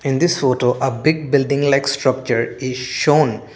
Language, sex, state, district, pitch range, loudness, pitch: English, male, Assam, Kamrup Metropolitan, 125-150 Hz, -17 LUFS, 135 Hz